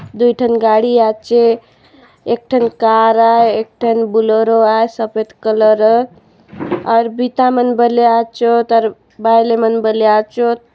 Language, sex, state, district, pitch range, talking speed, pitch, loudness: Halbi, female, Chhattisgarh, Bastar, 220-235 Hz, 130 wpm, 230 Hz, -13 LUFS